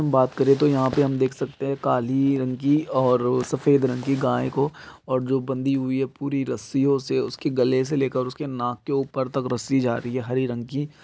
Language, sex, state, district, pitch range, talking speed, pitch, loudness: Hindi, male, Uttar Pradesh, Jalaun, 130-140 Hz, 230 wpm, 135 Hz, -23 LUFS